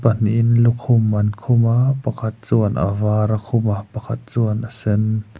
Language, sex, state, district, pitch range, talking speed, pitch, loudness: Mizo, male, Mizoram, Aizawl, 105-120 Hz, 180 wpm, 115 Hz, -19 LUFS